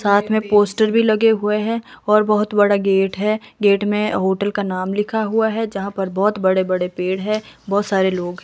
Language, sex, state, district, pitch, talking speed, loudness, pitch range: Hindi, female, Himachal Pradesh, Shimla, 205 Hz, 215 wpm, -18 LUFS, 195-215 Hz